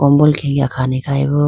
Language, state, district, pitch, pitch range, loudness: Idu Mishmi, Arunachal Pradesh, Lower Dibang Valley, 140 Hz, 135-145 Hz, -15 LUFS